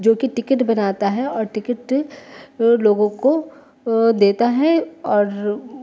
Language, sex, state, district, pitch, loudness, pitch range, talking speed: Hindi, female, Jharkhand, Jamtara, 235 Hz, -18 LUFS, 215-270 Hz, 115 wpm